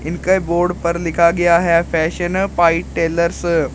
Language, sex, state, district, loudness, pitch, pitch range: Hindi, male, Uttar Pradesh, Shamli, -16 LUFS, 170 Hz, 170-175 Hz